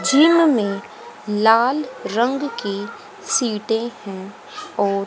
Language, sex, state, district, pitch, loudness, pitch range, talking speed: Hindi, female, Haryana, Rohtak, 235 Hz, -19 LUFS, 205-300 Hz, 95 wpm